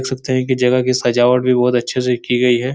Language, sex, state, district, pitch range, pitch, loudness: Hindi, male, Bihar, Supaul, 125-130 Hz, 125 Hz, -15 LUFS